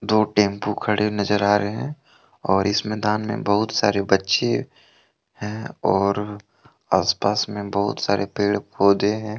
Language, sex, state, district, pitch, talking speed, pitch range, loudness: Hindi, male, Jharkhand, Deoghar, 105 Hz, 145 wpm, 100-105 Hz, -21 LUFS